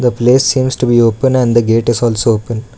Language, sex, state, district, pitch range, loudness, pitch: English, male, Karnataka, Bangalore, 115-130 Hz, -12 LUFS, 120 Hz